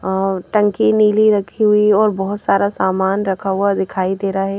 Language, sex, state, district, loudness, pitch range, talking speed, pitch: Hindi, female, Madhya Pradesh, Bhopal, -16 LUFS, 190-210 Hz, 195 wpm, 195 Hz